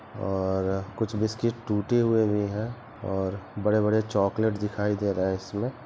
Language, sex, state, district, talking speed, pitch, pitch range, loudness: Hindi, male, Chhattisgarh, Rajnandgaon, 155 wpm, 105 Hz, 95-110 Hz, -27 LUFS